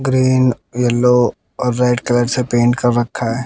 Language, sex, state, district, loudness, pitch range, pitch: Hindi, male, Bihar, West Champaran, -15 LUFS, 120-125 Hz, 125 Hz